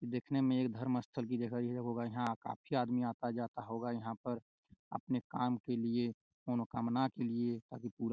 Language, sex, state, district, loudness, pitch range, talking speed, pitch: Hindi, male, Chhattisgarh, Raigarh, -38 LUFS, 115-125 Hz, 175 wpm, 120 Hz